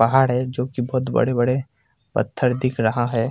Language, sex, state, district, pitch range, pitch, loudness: Hindi, male, Bihar, Purnia, 120-130 Hz, 125 Hz, -21 LUFS